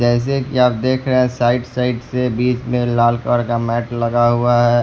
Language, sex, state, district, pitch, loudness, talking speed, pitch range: Hindi, male, Bihar, West Champaran, 120 Hz, -17 LUFS, 235 wpm, 120-125 Hz